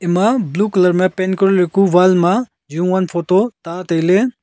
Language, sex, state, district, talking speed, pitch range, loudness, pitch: Wancho, male, Arunachal Pradesh, Longding, 160 wpm, 180-195 Hz, -15 LUFS, 185 Hz